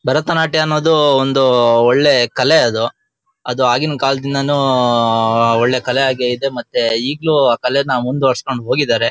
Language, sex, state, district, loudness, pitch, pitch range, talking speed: Kannada, male, Karnataka, Shimoga, -14 LUFS, 135 Hz, 125-145 Hz, 140 wpm